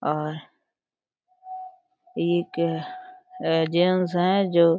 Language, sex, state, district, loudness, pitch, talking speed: Hindi, female, Uttar Pradesh, Deoria, -23 LUFS, 180 Hz, 75 wpm